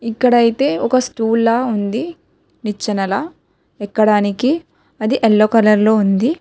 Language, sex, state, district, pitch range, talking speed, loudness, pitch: Telugu, female, Telangana, Hyderabad, 210-255 Hz, 105 wpm, -15 LUFS, 225 Hz